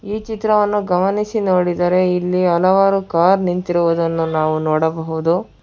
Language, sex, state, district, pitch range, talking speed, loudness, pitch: Kannada, female, Karnataka, Bangalore, 165-195 Hz, 105 wpm, -17 LUFS, 180 Hz